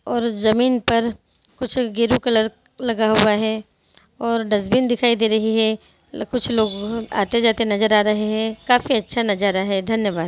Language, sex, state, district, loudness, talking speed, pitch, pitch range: Hindi, female, Bihar, Araria, -19 LUFS, 160 wpm, 225 Hz, 215-235 Hz